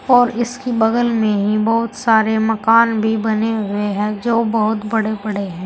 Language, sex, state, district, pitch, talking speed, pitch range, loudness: Hindi, female, Uttar Pradesh, Saharanpur, 220 Hz, 180 wpm, 215-230 Hz, -17 LUFS